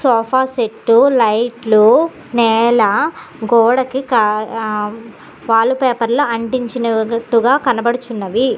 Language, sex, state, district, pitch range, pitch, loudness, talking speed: Telugu, female, Andhra Pradesh, Guntur, 225-255 Hz, 235 Hz, -14 LUFS, 70 wpm